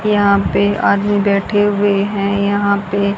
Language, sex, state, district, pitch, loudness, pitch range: Hindi, female, Haryana, Charkhi Dadri, 200 Hz, -15 LUFS, 200-205 Hz